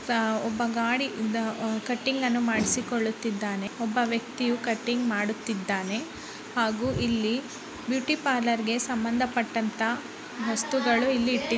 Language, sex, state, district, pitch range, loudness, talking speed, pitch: Kannada, female, Karnataka, Bellary, 225-250 Hz, -27 LUFS, 100 wpm, 235 Hz